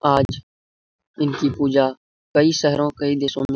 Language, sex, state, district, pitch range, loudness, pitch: Hindi, male, Bihar, Jahanabad, 135-145 Hz, -20 LUFS, 140 Hz